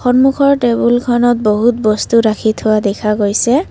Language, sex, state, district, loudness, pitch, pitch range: Assamese, female, Assam, Kamrup Metropolitan, -13 LUFS, 235 Hz, 215-245 Hz